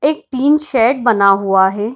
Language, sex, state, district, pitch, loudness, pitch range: Hindi, female, Bihar, Darbhanga, 235 Hz, -13 LUFS, 200-275 Hz